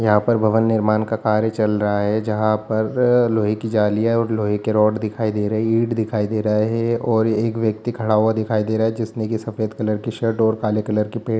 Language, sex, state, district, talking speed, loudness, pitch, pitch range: Hindi, male, Bihar, Jamui, 250 wpm, -19 LUFS, 110 Hz, 105-115 Hz